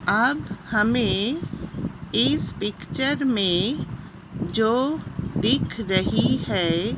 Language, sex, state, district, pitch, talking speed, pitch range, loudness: Hindi, female, Uttar Pradesh, Hamirpur, 210 Hz, 75 wpm, 185-245 Hz, -23 LUFS